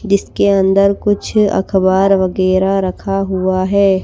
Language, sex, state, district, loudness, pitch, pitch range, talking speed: Hindi, female, Himachal Pradesh, Shimla, -14 LUFS, 195 Hz, 190-200 Hz, 120 wpm